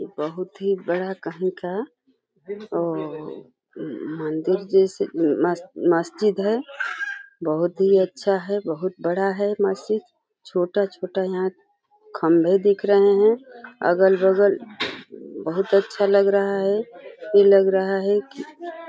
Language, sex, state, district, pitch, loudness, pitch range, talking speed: Hindi, female, Uttar Pradesh, Deoria, 195 Hz, -21 LUFS, 185-215 Hz, 120 wpm